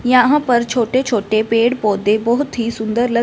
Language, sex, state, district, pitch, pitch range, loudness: Hindi, female, Punjab, Fazilka, 235 Hz, 225-250 Hz, -16 LUFS